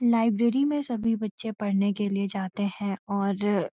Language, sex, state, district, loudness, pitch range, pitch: Hindi, female, Uttarakhand, Uttarkashi, -27 LUFS, 200-230 Hz, 205 Hz